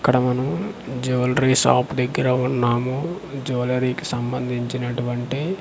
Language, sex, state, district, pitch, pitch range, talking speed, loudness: Telugu, male, Andhra Pradesh, Manyam, 125 Hz, 125-130 Hz, 95 wpm, -22 LUFS